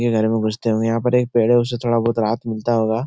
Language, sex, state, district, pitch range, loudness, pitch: Hindi, male, Bihar, Supaul, 110-120 Hz, -19 LUFS, 115 Hz